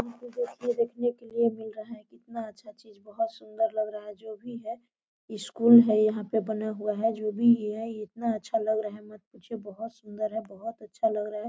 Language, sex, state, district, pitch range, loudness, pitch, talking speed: Hindi, female, Jharkhand, Sahebganj, 215-235 Hz, -28 LUFS, 220 Hz, 190 wpm